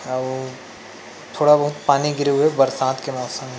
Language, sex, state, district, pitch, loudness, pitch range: Chhattisgarhi, male, Chhattisgarh, Rajnandgaon, 130 Hz, -19 LUFS, 130-145 Hz